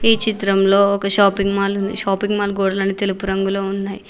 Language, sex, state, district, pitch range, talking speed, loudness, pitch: Telugu, female, Telangana, Mahabubabad, 195-200 Hz, 175 wpm, -18 LUFS, 200 Hz